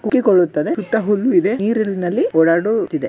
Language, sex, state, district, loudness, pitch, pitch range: Kannada, male, Karnataka, Gulbarga, -16 LUFS, 215 Hz, 180-260 Hz